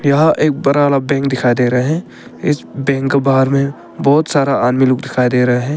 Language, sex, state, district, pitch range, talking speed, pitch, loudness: Hindi, male, Arunachal Pradesh, Papum Pare, 125-140 Hz, 220 wpm, 135 Hz, -14 LUFS